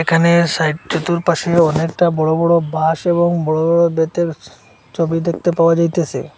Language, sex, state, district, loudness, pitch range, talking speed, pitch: Bengali, male, Assam, Hailakandi, -16 LUFS, 160-170 Hz, 140 wpm, 165 Hz